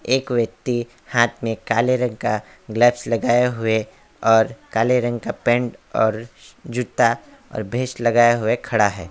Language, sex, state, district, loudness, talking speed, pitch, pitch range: Hindi, male, West Bengal, Alipurduar, -20 LUFS, 145 wpm, 120 Hz, 110-120 Hz